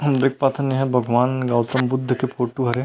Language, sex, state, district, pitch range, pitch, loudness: Chhattisgarhi, male, Chhattisgarh, Rajnandgaon, 125-135 Hz, 130 Hz, -20 LUFS